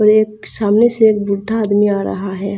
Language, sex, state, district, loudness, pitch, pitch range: Hindi, female, Bihar, Darbhanga, -15 LUFS, 210 Hz, 200-215 Hz